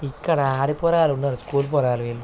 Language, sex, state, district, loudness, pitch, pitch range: Telugu, male, Andhra Pradesh, Krishna, -21 LUFS, 140 Hz, 135-150 Hz